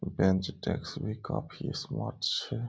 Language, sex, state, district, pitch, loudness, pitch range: Maithili, male, Bihar, Saharsa, 130 Hz, -33 LUFS, 110-150 Hz